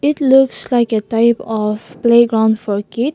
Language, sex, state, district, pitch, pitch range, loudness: English, female, Nagaland, Kohima, 230 Hz, 220-245 Hz, -14 LUFS